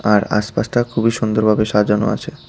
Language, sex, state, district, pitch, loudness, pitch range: Bengali, male, Tripura, West Tripura, 110 Hz, -17 LUFS, 105-115 Hz